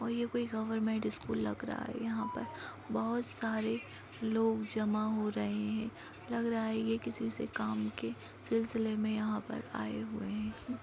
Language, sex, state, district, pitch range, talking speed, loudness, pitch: Hindi, female, Uttar Pradesh, Budaun, 210-230 Hz, 175 wpm, -36 LUFS, 220 Hz